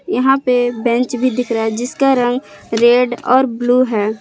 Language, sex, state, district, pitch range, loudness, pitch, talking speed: Hindi, female, Jharkhand, Palamu, 235-255 Hz, -15 LUFS, 245 Hz, 185 wpm